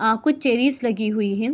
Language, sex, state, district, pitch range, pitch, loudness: Hindi, female, Bihar, Begusarai, 220-270 Hz, 235 Hz, -21 LUFS